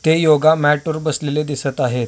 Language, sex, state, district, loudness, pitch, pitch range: Marathi, male, Maharashtra, Solapur, -17 LUFS, 150 Hz, 145-155 Hz